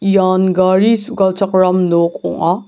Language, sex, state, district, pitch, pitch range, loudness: Garo, male, Meghalaya, South Garo Hills, 185 Hz, 185-195 Hz, -13 LUFS